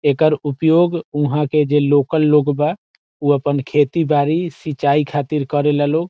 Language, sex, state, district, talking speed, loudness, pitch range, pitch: Bhojpuri, male, Bihar, Saran, 165 wpm, -17 LUFS, 145-155 Hz, 150 Hz